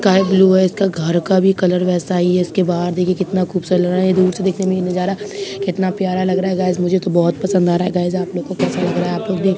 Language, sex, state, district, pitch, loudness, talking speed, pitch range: Hindi, male, Bihar, Begusarai, 185 Hz, -16 LUFS, 305 wpm, 180-190 Hz